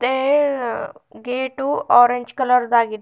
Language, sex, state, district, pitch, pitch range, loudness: Kannada, female, Karnataka, Bidar, 250 Hz, 245-265 Hz, -18 LUFS